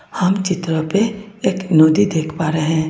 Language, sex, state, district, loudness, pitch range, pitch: Hindi, female, Tripura, West Tripura, -17 LUFS, 160-195 Hz, 175 Hz